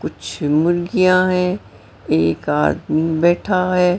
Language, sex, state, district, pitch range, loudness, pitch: Hindi, female, Maharashtra, Mumbai Suburban, 150-185 Hz, -17 LUFS, 175 Hz